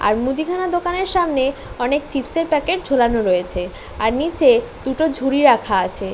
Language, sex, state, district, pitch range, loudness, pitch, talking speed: Bengali, female, West Bengal, North 24 Parganas, 245-345 Hz, -18 LUFS, 285 Hz, 155 wpm